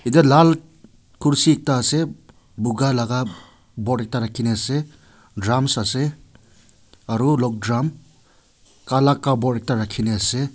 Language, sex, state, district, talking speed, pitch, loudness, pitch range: Nagamese, male, Nagaland, Kohima, 125 wpm, 125 Hz, -20 LUFS, 110-140 Hz